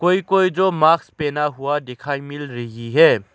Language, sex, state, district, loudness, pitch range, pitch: Hindi, male, Arunachal Pradesh, Lower Dibang Valley, -19 LUFS, 135-170 Hz, 145 Hz